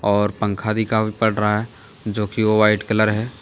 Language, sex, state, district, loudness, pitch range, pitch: Hindi, male, Jharkhand, Deoghar, -19 LUFS, 105-110 Hz, 110 Hz